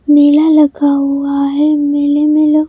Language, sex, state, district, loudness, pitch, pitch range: Hindi, female, Madhya Pradesh, Bhopal, -11 LUFS, 290 Hz, 285-300 Hz